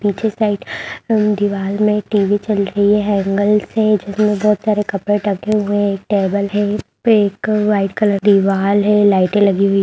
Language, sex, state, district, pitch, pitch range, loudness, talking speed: Hindi, female, Bihar, Saharsa, 205 Hz, 200-210 Hz, -15 LUFS, 185 wpm